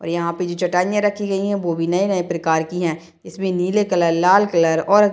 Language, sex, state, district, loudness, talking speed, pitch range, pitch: Hindi, female, Bihar, Madhepura, -19 LUFS, 245 wpm, 170-195 Hz, 180 Hz